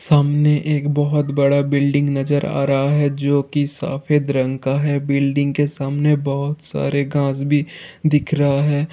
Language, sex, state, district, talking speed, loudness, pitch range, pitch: Hindi, male, Bihar, Jahanabad, 160 wpm, -18 LUFS, 140-145 Hz, 145 Hz